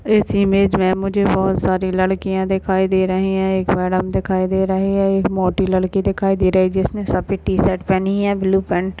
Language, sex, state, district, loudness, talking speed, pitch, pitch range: Hindi, male, Maharashtra, Nagpur, -18 LUFS, 215 wpm, 190 Hz, 185-195 Hz